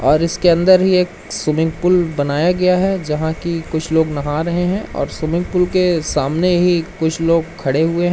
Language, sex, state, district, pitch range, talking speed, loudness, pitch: Hindi, male, Madhya Pradesh, Umaria, 160-180 Hz, 205 wpm, -16 LUFS, 170 Hz